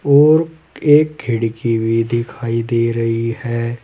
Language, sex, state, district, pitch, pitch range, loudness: Hindi, male, Uttar Pradesh, Saharanpur, 115 Hz, 115-145 Hz, -16 LUFS